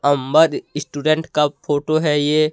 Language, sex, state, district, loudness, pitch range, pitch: Hindi, male, Jharkhand, Deoghar, -18 LUFS, 145-155 Hz, 150 Hz